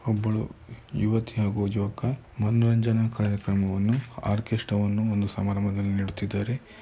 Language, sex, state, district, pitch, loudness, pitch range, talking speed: Kannada, male, Karnataka, Mysore, 105 Hz, -27 LUFS, 100-115 Hz, 90 wpm